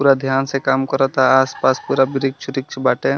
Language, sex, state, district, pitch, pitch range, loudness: Bhojpuri, male, Bihar, East Champaran, 135 Hz, 130-135 Hz, -17 LUFS